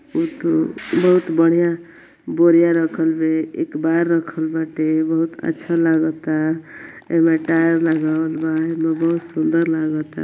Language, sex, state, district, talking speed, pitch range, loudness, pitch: Bhojpuri, female, Uttar Pradesh, Ghazipur, 115 wpm, 160-170 Hz, -18 LUFS, 165 Hz